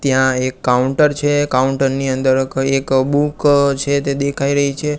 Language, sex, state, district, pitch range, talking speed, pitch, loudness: Gujarati, male, Gujarat, Gandhinagar, 130-145 Hz, 170 wpm, 135 Hz, -16 LUFS